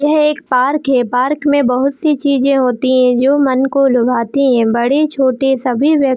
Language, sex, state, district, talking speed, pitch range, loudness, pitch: Hindi, female, Jharkhand, Jamtara, 195 wpm, 255-285 Hz, -13 LUFS, 270 Hz